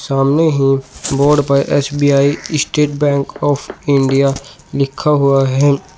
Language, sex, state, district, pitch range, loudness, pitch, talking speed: Hindi, male, Uttar Pradesh, Shamli, 135-145 Hz, -14 LUFS, 140 Hz, 120 wpm